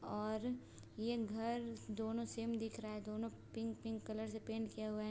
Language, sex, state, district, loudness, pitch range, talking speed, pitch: Hindi, female, Bihar, Sitamarhi, -44 LUFS, 215-230 Hz, 210 wpm, 225 Hz